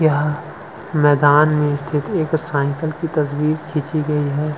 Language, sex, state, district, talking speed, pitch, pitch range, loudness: Hindi, male, Chhattisgarh, Sukma, 130 wpm, 150 Hz, 145-155 Hz, -18 LUFS